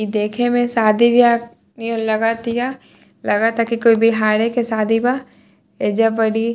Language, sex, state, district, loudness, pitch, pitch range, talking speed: Bhojpuri, female, Bihar, Saran, -17 LUFS, 230 Hz, 220-235 Hz, 145 wpm